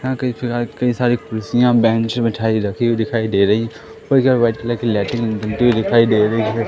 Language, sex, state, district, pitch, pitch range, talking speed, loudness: Hindi, male, Madhya Pradesh, Katni, 115 Hz, 110-120 Hz, 215 wpm, -17 LUFS